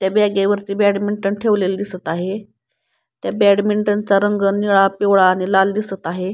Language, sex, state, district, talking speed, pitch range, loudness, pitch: Marathi, female, Maharashtra, Pune, 150 wpm, 195-205 Hz, -17 LUFS, 200 Hz